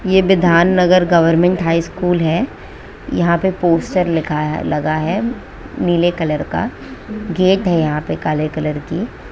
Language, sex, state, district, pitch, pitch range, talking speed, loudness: Hindi, female, West Bengal, Kolkata, 170 Hz, 160-185 Hz, 150 wpm, -16 LUFS